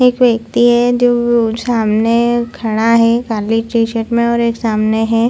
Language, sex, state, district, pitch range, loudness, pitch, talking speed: Hindi, female, Chhattisgarh, Bilaspur, 225-240 Hz, -13 LUFS, 230 Hz, 170 wpm